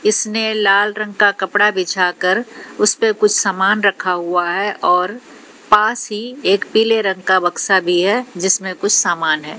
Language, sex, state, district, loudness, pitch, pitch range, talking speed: Hindi, female, Haryana, Jhajjar, -15 LUFS, 200 Hz, 185-215 Hz, 165 wpm